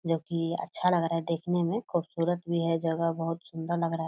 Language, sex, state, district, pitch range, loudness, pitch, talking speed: Hindi, female, Bihar, Purnia, 165-170 Hz, -30 LUFS, 165 Hz, 250 wpm